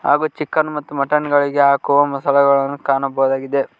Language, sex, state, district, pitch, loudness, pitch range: Kannada, male, Karnataka, Koppal, 140 Hz, -17 LUFS, 140-145 Hz